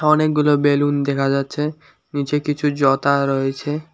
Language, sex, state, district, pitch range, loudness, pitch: Bengali, male, West Bengal, Alipurduar, 140-150 Hz, -19 LUFS, 145 Hz